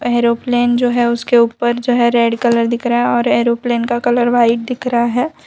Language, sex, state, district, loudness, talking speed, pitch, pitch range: Hindi, female, Gujarat, Valsad, -14 LUFS, 220 wpm, 240 Hz, 235-245 Hz